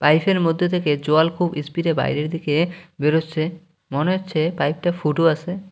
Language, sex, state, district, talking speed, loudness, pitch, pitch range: Bengali, male, West Bengal, Cooch Behar, 180 wpm, -21 LUFS, 165 Hz, 150-175 Hz